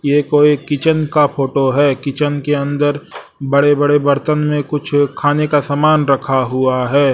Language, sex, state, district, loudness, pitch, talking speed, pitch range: Hindi, male, Chhattisgarh, Raipur, -14 LUFS, 145 Hz, 170 wpm, 140-150 Hz